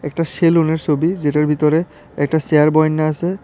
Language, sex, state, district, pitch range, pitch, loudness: Bengali, male, Tripura, West Tripura, 150-165 Hz, 155 Hz, -16 LUFS